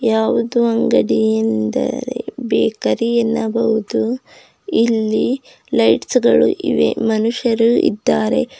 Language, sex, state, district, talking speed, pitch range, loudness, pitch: Kannada, female, Karnataka, Bidar, 75 wpm, 215-235 Hz, -17 LUFS, 225 Hz